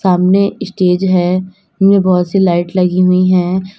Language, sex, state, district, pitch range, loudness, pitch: Hindi, female, Uttar Pradesh, Lalitpur, 180-190 Hz, -12 LUFS, 185 Hz